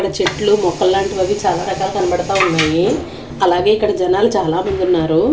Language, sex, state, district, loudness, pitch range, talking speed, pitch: Telugu, female, Andhra Pradesh, Manyam, -16 LUFS, 175-195 Hz, 125 wpm, 190 Hz